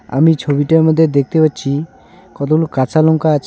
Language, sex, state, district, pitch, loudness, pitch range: Bengali, male, West Bengal, Alipurduar, 155 Hz, -14 LUFS, 140-160 Hz